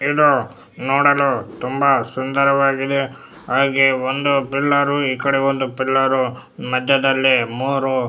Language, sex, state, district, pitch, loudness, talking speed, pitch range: Kannada, male, Karnataka, Bellary, 135 Hz, -17 LUFS, 105 wpm, 130-140 Hz